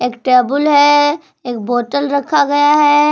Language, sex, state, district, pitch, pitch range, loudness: Hindi, female, Jharkhand, Palamu, 285 Hz, 250-290 Hz, -12 LUFS